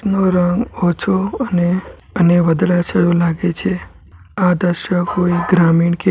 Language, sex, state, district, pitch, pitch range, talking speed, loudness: Gujarati, male, Gujarat, Valsad, 175 Hz, 170-185 Hz, 125 wpm, -16 LUFS